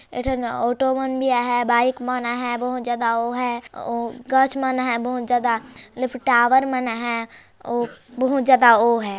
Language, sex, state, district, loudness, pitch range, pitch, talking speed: Chhattisgarhi, female, Chhattisgarh, Jashpur, -21 LUFS, 235-255 Hz, 245 Hz, 170 wpm